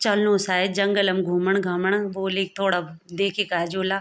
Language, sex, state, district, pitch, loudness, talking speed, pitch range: Garhwali, female, Uttarakhand, Tehri Garhwal, 190 Hz, -23 LUFS, 150 wpm, 180-200 Hz